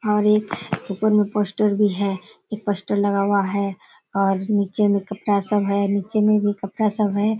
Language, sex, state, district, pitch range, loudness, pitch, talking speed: Hindi, female, Bihar, Kishanganj, 200-210 Hz, -21 LUFS, 205 Hz, 205 wpm